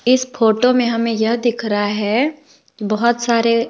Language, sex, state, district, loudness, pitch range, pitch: Hindi, female, Bihar, West Champaran, -17 LUFS, 220-250 Hz, 235 Hz